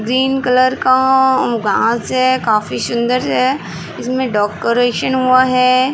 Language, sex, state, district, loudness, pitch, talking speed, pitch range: Hindi, female, Uttar Pradesh, Varanasi, -14 LUFS, 255 Hz, 130 wpm, 235-260 Hz